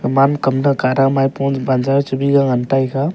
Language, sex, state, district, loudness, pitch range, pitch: Wancho, male, Arunachal Pradesh, Longding, -16 LUFS, 135-140 Hz, 135 Hz